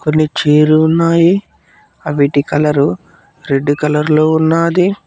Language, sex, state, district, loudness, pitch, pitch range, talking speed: Telugu, male, Telangana, Mahabubabad, -12 LUFS, 155 Hz, 150-165 Hz, 95 wpm